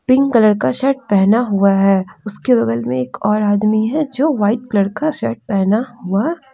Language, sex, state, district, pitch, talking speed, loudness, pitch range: Hindi, female, Jharkhand, Deoghar, 210 Hz, 190 wpm, -16 LUFS, 195-255 Hz